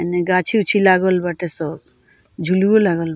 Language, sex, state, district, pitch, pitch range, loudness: Bhojpuri, female, Bihar, Muzaffarpur, 180 Hz, 170-190 Hz, -17 LUFS